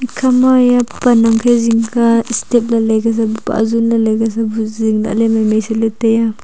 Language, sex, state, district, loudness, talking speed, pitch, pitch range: Wancho, female, Arunachal Pradesh, Longding, -13 LUFS, 170 wpm, 225 Hz, 220-235 Hz